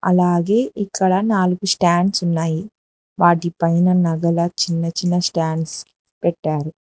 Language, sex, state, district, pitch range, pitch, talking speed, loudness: Telugu, female, Telangana, Hyderabad, 165-185 Hz, 175 Hz, 95 wpm, -18 LUFS